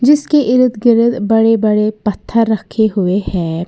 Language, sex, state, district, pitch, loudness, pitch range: Hindi, female, Uttar Pradesh, Lalitpur, 220 Hz, -13 LUFS, 210-235 Hz